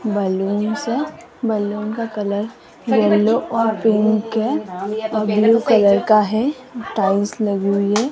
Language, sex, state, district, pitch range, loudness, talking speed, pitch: Hindi, female, Rajasthan, Jaipur, 205-225 Hz, -18 LUFS, 125 wpm, 215 Hz